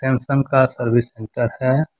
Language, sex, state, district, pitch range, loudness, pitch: Hindi, male, Jharkhand, Deoghar, 120-135 Hz, -19 LUFS, 130 Hz